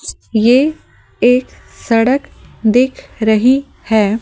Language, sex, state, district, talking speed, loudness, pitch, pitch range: Hindi, female, Delhi, New Delhi, 100 wpm, -14 LUFS, 240 Hz, 220-260 Hz